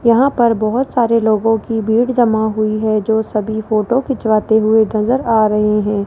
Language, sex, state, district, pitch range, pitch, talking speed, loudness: Hindi, male, Rajasthan, Jaipur, 215-235 Hz, 220 Hz, 185 wpm, -15 LUFS